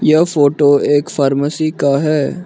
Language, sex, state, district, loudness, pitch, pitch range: Hindi, male, Arunachal Pradesh, Lower Dibang Valley, -14 LUFS, 145 Hz, 140-155 Hz